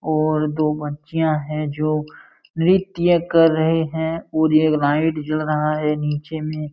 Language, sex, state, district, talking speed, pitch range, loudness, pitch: Hindi, male, Uttar Pradesh, Jalaun, 150 wpm, 150-160 Hz, -20 LUFS, 155 Hz